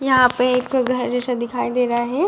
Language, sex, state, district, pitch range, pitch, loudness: Hindi, female, Bihar, Jamui, 245-255 Hz, 250 Hz, -19 LUFS